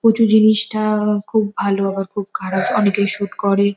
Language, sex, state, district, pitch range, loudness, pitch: Bengali, female, West Bengal, North 24 Parganas, 200-215 Hz, -17 LUFS, 205 Hz